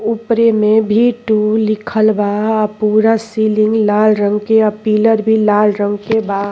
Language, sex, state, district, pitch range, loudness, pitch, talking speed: Bhojpuri, female, Uttar Pradesh, Ghazipur, 210-220 Hz, -13 LUFS, 215 Hz, 175 wpm